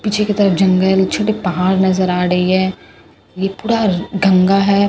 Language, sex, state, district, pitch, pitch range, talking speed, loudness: Hindi, female, Bihar, Katihar, 190 Hz, 185-200 Hz, 170 wpm, -15 LUFS